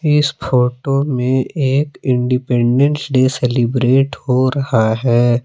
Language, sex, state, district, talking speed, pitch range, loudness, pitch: Hindi, male, Jharkhand, Palamu, 110 wpm, 125-135 Hz, -15 LUFS, 130 Hz